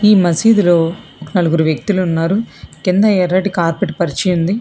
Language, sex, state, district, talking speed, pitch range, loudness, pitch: Telugu, female, Telangana, Hyderabad, 130 wpm, 165-200 Hz, -14 LUFS, 180 Hz